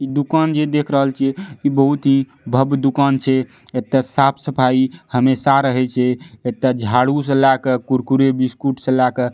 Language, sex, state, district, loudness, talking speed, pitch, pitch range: Maithili, male, Bihar, Madhepura, -17 LUFS, 180 wpm, 135 Hz, 130-140 Hz